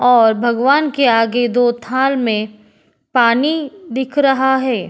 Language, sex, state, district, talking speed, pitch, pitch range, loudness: Hindi, female, Uttarakhand, Tehri Garhwal, 135 wpm, 250 Hz, 235-270 Hz, -15 LUFS